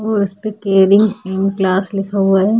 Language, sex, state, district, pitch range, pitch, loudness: Hindi, female, Bihar, Vaishali, 195-210 Hz, 195 Hz, -15 LUFS